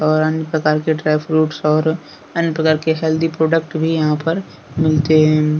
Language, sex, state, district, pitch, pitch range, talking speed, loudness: Hindi, male, Jharkhand, Deoghar, 155 Hz, 155-160 Hz, 180 wpm, -17 LUFS